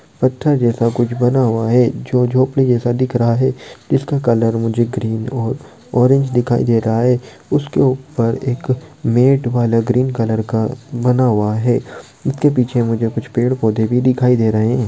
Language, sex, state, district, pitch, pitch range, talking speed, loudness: Hindi, male, Maharashtra, Dhule, 125 Hz, 115-130 Hz, 175 wpm, -16 LUFS